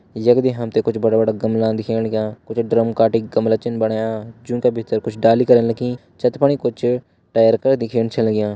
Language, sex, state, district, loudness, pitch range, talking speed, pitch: Garhwali, male, Uttarakhand, Uttarkashi, -18 LUFS, 110-120 Hz, 180 wpm, 115 Hz